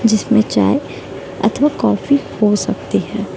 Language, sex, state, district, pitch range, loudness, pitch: Hindi, female, Bihar, East Champaran, 215-280 Hz, -16 LUFS, 225 Hz